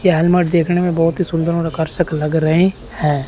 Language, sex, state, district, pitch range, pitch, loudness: Hindi, male, Chandigarh, Chandigarh, 160-175 Hz, 165 Hz, -16 LUFS